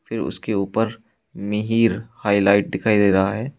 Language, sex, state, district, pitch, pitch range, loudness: Hindi, male, Uttar Pradesh, Shamli, 105 Hz, 100-110 Hz, -20 LUFS